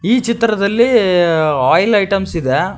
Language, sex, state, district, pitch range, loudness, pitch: Kannada, male, Karnataka, Koppal, 165-225 Hz, -13 LUFS, 195 Hz